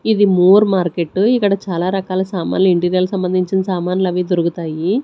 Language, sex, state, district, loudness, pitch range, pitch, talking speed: Telugu, female, Andhra Pradesh, Sri Satya Sai, -16 LUFS, 180-195 Hz, 185 Hz, 145 wpm